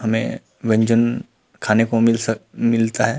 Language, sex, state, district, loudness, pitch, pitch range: Chhattisgarhi, male, Chhattisgarh, Rajnandgaon, -19 LUFS, 115 Hz, 110-115 Hz